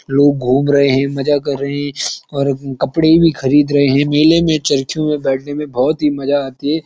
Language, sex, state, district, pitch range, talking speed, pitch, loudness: Hindi, male, Uttarakhand, Uttarkashi, 140-150 Hz, 220 wpm, 145 Hz, -14 LUFS